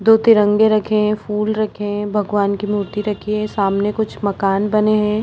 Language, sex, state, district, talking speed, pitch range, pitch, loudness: Hindi, female, Uttar Pradesh, Budaun, 195 wpm, 205-215 Hz, 210 Hz, -17 LUFS